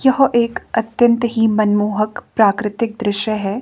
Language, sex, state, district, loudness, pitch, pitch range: Hindi, female, Himachal Pradesh, Shimla, -17 LUFS, 225 Hz, 210-235 Hz